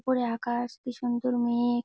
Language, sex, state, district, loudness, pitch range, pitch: Bengali, female, West Bengal, Jalpaiguri, -29 LUFS, 240-250 Hz, 240 Hz